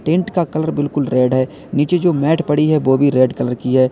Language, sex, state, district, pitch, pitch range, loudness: Hindi, male, Uttar Pradesh, Lalitpur, 145 Hz, 130-160 Hz, -16 LUFS